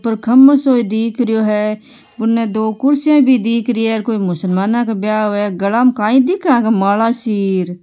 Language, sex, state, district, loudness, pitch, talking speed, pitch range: Marwari, female, Rajasthan, Nagaur, -14 LUFS, 225 Hz, 155 wpm, 210-245 Hz